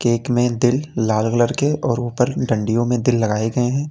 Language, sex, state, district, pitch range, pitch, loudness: Hindi, male, Uttar Pradesh, Lalitpur, 115-125 Hz, 120 Hz, -19 LUFS